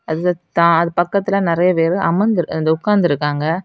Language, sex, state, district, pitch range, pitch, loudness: Tamil, female, Tamil Nadu, Kanyakumari, 165-190 Hz, 170 Hz, -16 LUFS